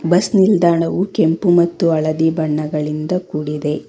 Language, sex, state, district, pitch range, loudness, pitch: Kannada, female, Karnataka, Bangalore, 150-180 Hz, -16 LUFS, 165 Hz